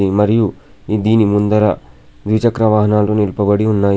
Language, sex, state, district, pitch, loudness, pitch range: Telugu, male, Telangana, Adilabad, 105 Hz, -14 LUFS, 105-110 Hz